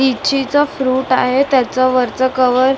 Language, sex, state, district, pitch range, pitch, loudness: Marathi, female, Maharashtra, Mumbai Suburban, 255-270 Hz, 260 Hz, -15 LUFS